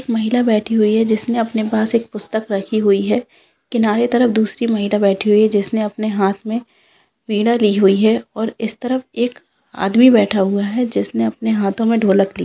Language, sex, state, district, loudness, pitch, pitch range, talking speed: Hindi, female, Bihar, Jahanabad, -17 LUFS, 220 Hz, 205-235 Hz, 205 wpm